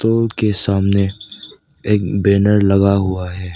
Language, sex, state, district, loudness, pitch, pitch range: Hindi, male, Arunachal Pradesh, Lower Dibang Valley, -16 LUFS, 100 Hz, 100-105 Hz